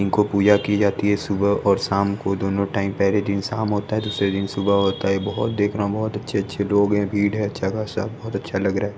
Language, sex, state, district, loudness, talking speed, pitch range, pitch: Hindi, male, Odisha, Sambalpur, -21 LUFS, 245 wpm, 100-105 Hz, 100 Hz